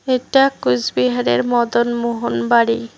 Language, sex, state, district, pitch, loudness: Bengali, female, West Bengal, Cooch Behar, 235 Hz, -17 LUFS